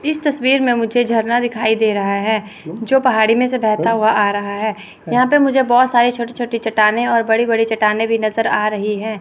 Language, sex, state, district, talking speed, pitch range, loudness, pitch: Hindi, female, Chandigarh, Chandigarh, 230 wpm, 215-245 Hz, -16 LUFS, 225 Hz